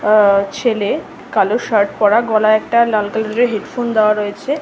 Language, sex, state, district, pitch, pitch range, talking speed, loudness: Bengali, female, West Bengal, North 24 Parganas, 215 Hz, 210-235 Hz, 155 wpm, -15 LUFS